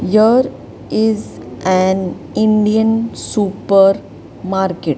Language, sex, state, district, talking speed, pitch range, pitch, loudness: English, male, Maharashtra, Mumbai Suburban, 70 wpm, 185-220 Hz, 195 Hz, -15 LUFS